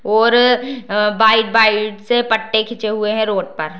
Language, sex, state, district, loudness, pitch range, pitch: Hindi, female, Bihar, Darbhanga, -15 LUFS, 210-230 Hz, 220 Hz